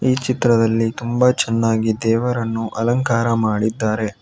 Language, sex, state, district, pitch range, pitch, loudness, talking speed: Kannada, male, Karnataka, Bangalore, 110-120 Hz, 115 Hz, -18 LUFS, 100 wpm